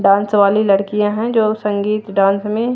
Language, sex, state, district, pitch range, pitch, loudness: Hindi, female, Haryana, Jhajjar, 200-215 Hz, 210 Hz, -15 LUFS